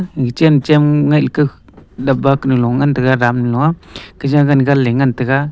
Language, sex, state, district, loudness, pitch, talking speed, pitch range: Wancho, male, Arunachal Pradesh, Longding, -13 LUFS, 135 Hz, 175 wpm, 125-145 Hz